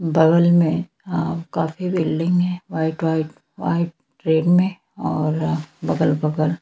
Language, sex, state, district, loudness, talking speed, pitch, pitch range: Hindi, female, Chhattisgarh, Sukma, -20 LUFS, 120 wpm, 160 Hz, 160-175 Hz